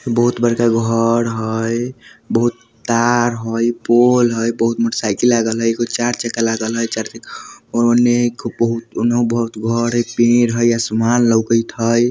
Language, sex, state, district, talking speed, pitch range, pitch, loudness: Bajjika, male, Bihar, Vaishali, 165 wpm, 115-120 Hz, 115 Hz, -16 LUFS